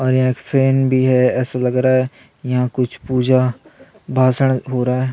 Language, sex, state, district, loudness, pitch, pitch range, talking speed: Hindi, male, Chhattisgarh, Sukma, -17 LUFS, 130 Hz, 125-130 Hz, 185 wpm